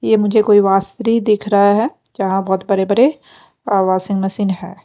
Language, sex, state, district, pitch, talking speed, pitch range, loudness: Hindi, female, Punjab, Pathankot, 200 Hz, 175 wpm, 195-215 Hz, -15 LUFS